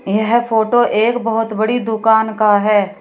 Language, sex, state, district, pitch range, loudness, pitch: Hindi, female, Uttar Pradesh, Shamli, 215-230 Hz, -15 LUFS, 220 Hz